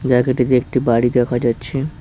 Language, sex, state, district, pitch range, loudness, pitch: Bengali, male, West Bengal, Cooch Behar, 120-130 Hz, -17 LUFS, 125 Hz